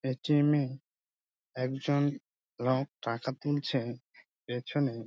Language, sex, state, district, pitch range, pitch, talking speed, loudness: Bengali, male, West Bengal, Dakshin Dinajpur, 120-145 Hz, 130 Hz, 120 wpm, -32 LUFS